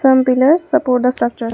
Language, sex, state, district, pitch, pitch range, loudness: English, female, Assam, Kamrup Metropolitan, 255 Hz, 250-275 Hz, -14 LUFS